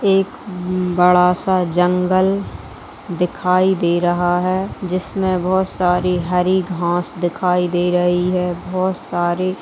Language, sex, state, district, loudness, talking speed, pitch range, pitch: Hindi, female, Bihar, Gaya, -18 LUFS, 120 wpm, 180-185 Hz, 180 Hz